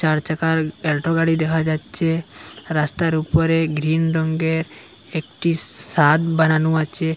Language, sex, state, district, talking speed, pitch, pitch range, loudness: Bengali, male, Assam, Hailakandi, 115 wpm, 160 Hz, 155-165 Hz, -19 LUFS